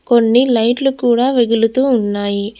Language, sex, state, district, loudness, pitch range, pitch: Telugu, female, Telangana, Mahabubabad, -14 LUFS, 225-250 Hz, 235 Hz